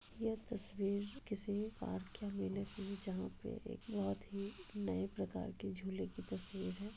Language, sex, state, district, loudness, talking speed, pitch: Hindi, female, Jharkhand, Sahebganj, -44 LUFS, 170 wpm, 195 Hz